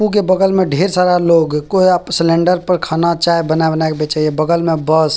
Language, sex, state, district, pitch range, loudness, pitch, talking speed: Maithili, male, Bihar, Purnia, 160-180 Hz, -14 LUFS, 170 Hz, 230 wpm